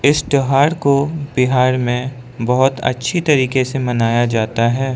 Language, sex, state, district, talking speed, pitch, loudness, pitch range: Hindi, male, Arunachal Pradesh, Lower Dibang Valley, 145 wpm, 130 Hz, -16 LUFS, 125-140 Hz